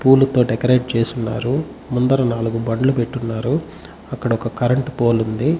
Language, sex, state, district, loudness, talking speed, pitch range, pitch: Telugu, male, Andhra Pradesh, Chittoor, -19 LUFS, 150 wpm, 115-135 Hz, 125 Hz